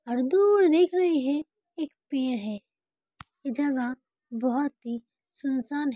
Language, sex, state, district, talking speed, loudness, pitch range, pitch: Hindi, female, Uttar Pradesh, Hamirpur, 140 wpm, -26 LUFS, 255-320 Hz, 275 Hz